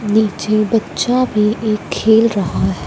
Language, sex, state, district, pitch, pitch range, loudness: Hindi, female, Punjab, Fazilka, 215 Hz, 210-225 Hz, -15 LUFS